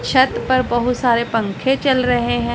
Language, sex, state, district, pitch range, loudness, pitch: Hindi, female, Punjab, Pathankot, 240-260 Hz, -17 LUFS, 245 Hz